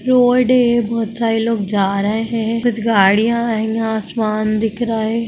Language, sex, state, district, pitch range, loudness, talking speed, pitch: Hindi, female, Bihar, Gaya, 220-235 Hz, -16 LUFS, 180 wpm, 225 Hz